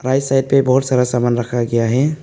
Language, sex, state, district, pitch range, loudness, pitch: Hindi, male, Arunachal Pradesh, Papum Pare, 120-135 Hz, -16 LUFS, 130 Hz